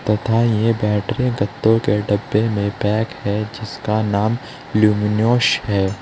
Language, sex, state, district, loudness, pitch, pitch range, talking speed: Hindi, male, Uttar Pradesh, Saharanpur, -19 LUFS, 105 Hz, 105-115 Hz, 120 wpm